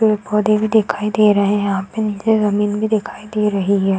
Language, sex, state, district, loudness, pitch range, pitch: Hindi, female, Bihar, Darbhanga, -17 LUFS, 205-215 Hz, 210 Hz